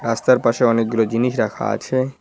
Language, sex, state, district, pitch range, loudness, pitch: Bengali, male, West Bengal, Cooch Behar, 115-130 Hz, -18 LUFS, 120 Hz